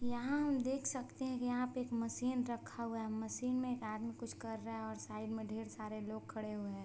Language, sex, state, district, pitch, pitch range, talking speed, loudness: Hindi, female, Bihar, Sitamarhi, 230 Hz, 220-250 Hz, 245 wpm, -41 LUFS